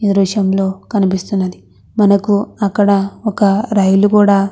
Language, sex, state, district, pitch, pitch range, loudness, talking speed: Telugu, female, Andhra Pradesh, Krishna, 200 Hz, 195-205 Hz, -14 LUFS, 105 wpm